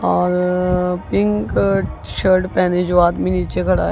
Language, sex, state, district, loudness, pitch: Hindi, female, Punjab, Kapurthala, -17 LUFS, 170 Hz